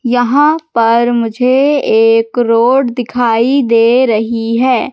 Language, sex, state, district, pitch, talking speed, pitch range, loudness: Hindi, female, Madhya Pradesh, Katni, 240 Hz, 110 wpm, 230-255 Hz, -11 LUFS